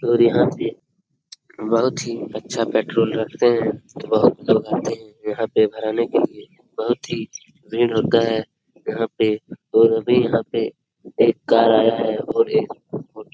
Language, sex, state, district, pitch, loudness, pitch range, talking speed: Hindi, male, Bihar, Araria, 115 Hz, -20 LUFS, 110-120 Hz, 160 wpm